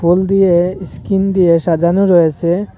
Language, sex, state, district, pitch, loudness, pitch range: Bengali, male, Assam, Hailakandi, 175 Hz, -13 LUFS, 170-190 Hz